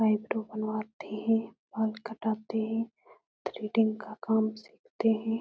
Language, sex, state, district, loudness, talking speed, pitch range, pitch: Hindi, female, Uttar Pradesh, Etah, -31 LUFS, 120 wpm, 215-225 Hz, 220 Hz